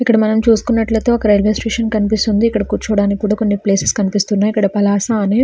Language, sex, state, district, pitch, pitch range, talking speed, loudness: Telugu, female, Andhra Pradesh, Srikakulam, 215 Hz, 205-225 Hz, 165 wpm, -15 LUFS